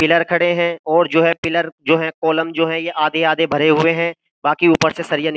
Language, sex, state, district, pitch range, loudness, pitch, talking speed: Hindi, male, Uttar Pradesh, Jyotiba Phule Nagar, 160-170 Hz, -16 LUFS, 165 Hz, 245 wpm